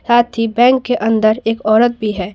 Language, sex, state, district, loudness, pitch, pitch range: Hindi, female, Bihar, Patna, -14 LUFS, 225 Hz, 215-240 Hz